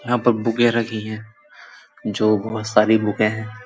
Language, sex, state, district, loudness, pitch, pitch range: Hindi, male, Uttar Pradesh, Muzaffarnagar, -19 LUFS, 110 Hz, 110-115 Hz